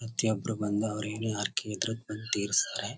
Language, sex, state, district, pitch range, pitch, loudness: Kannada, male, Karnataka, Chamarajanagar, 105-110 Hz, 105 Hz, -31 LUFS